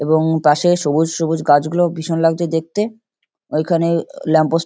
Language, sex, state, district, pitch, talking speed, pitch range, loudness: Bengali, male, West Bengal, Kolkata, 165 Hz, 170 wpm, 160-170 Hz, -17 LUFS